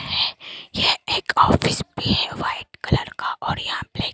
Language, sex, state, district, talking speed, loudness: Hindi, female, Madhya Pradesh, Bhopal, 175 wpm, -21 LUFS